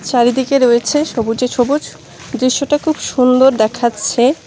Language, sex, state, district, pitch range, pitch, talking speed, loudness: Bengali, female, West Bengal, Cooch Behar, 240-275 Hz, 255 Hz, 105 wpm, -14 LUFS